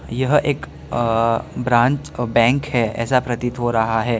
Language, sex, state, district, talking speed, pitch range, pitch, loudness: Hindi, male, Arunachal Pradesh, Lower Dibang Valley, 170 wpm, 115-130 Hz, 120 Hz, -19 LUFS